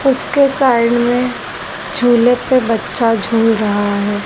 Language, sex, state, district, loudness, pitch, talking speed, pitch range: Hindi, female, Madhya Pradesh, Dhar, -14 LUFS, 240 Hz, 125 wpm, 225-250 Hz